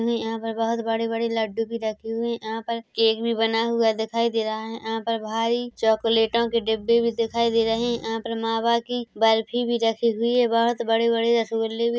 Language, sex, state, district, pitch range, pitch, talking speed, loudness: Hindi, female, Chhattisgarh, Bilaspur, 225-235 Hz, 230 Hz, 230 wpm, -23 LUFS